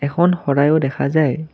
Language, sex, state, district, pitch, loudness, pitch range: Assamese, male, Assam, Kamrup Metropolitan, 155 Hz, -17 LUFS, 140-160 Hz